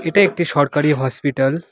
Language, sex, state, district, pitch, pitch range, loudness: Bengali, male, West Bengal, Alipurduar, 150 Hz, 140-170 Hz, -17 LUFS